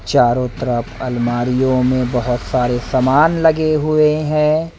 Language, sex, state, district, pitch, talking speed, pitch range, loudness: Hindi, male, Madhya Pradesh, Umaria, 130 Hz, 125 wpm, 125-150 Hz, -16 LUFS